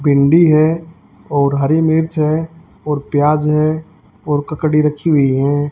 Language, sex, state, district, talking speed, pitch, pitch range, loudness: Hindi, female, Haryana, Charkhi Dadri, 145 wpm, 150 Hz, 145-160 Hz, -15 LUFS